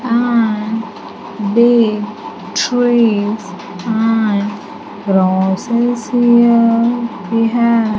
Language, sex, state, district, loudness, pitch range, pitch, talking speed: English, female, Andhra Pradesh, Sri Satya Sai, -14 LUFS, 210-235 Hz, 225 Hz, 70 wpm